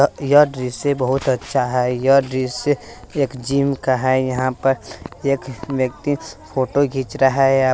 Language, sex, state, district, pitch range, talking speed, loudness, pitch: Hindi, male, Bihar, West Champaran, 130-140 Hz, 145 wpm, -19 LUFS, 135 Hz